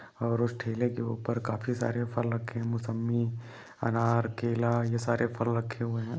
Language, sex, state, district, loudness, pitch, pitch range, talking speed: Hindi, male, Bihar, Jahanabad, -31 LUFS, 115 Hz, 115-120 Hz, 185 wpm